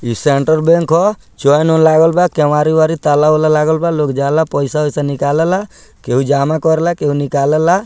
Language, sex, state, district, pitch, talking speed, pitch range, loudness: Bhojpuri, male, Bihar, Muzaffarpur, 155 Hz, 170 wpm, 145-160 Hz, -13 LUFS